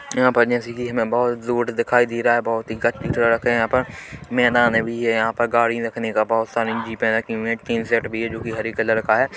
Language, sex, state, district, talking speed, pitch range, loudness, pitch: Hindi, male, Chhattisgarh, Korba, 275 wpm, 115-120 Hz, -20 LUFS, 115 Hz